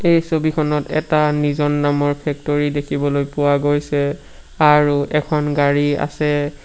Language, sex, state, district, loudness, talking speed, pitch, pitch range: Assamese, male, Assam, Sonitpur, -18 LUFS, 115 wpm, 145 Hz, 145-150 Hz